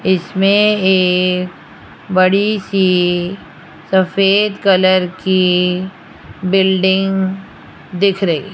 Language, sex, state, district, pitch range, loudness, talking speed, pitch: Hindi, female, Rajasthan, Jaipur, 180-195 Hz, -14 LUFS, 75 wpm, 190 Hz